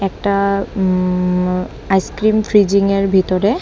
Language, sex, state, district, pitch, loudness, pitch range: Bengali, female, Assam, Hailakandi, 195 Hz, -16 LUFS, 185-200 Hz